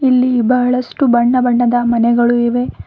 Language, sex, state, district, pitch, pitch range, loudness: Kannada, female, Karnataka, Bidar, 245 Hz, 240-250 Hz, -13 LUFS